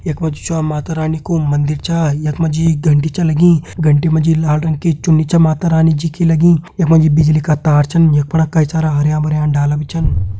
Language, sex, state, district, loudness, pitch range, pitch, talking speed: Hindi, male, Uttarakhand, Uttarkashi, -14 LUFS, 150-165 Hz, 160 Hz, 230 wpm